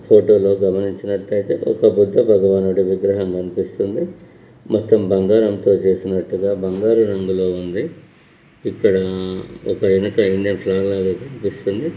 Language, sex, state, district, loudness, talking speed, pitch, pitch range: Telugu, male, Karnataka, Bellary, -18 LUFS, 95 wpm, 95 Hz, 95-100 Hz